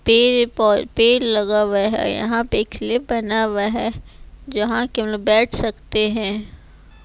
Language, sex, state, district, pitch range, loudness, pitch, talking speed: Hindi, female, Chhattisgarh, Raipur, 210-230 Hz, -17 LUFS, 220 Hz, 145 wpm